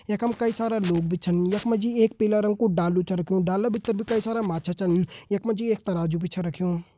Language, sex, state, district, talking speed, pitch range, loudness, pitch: Hindi, male, Uttarakhand, Tehri Garhwal, 260 wpm, 180-225 Hz, -25 LUFS, 200 Hz